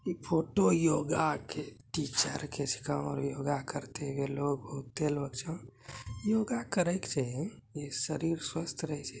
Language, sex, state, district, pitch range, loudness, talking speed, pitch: Hindi, male, Bihar, Bhagalpur, 135-165 Hz, -33 LUFS, 85 wpm, 145 Hz